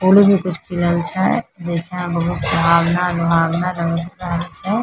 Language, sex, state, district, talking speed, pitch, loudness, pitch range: Maithili, female, Bihar, Samastipur, 160 wpm, 175 Hz, -18 LUFS, 170-180 Hz